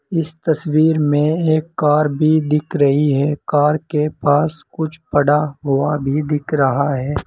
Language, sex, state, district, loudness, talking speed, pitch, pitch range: Hindi, male, Uttar Pradesh, Saharanpur, -17 LUFS, 155 wpm, 150 Hz, 145-155 Hz